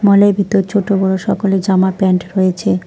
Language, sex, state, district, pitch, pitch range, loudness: Bengali, female, West Bengal, Alipurduar, 190 Hz, 185-200 Hz, -14 LUFS